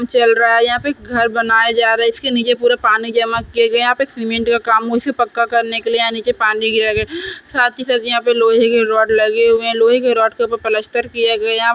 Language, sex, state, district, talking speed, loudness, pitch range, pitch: Hindi, male, Andhra Pradesh, Guntur, 260 wpm, -14 LUFS, 225-240 Hz, 230 Hz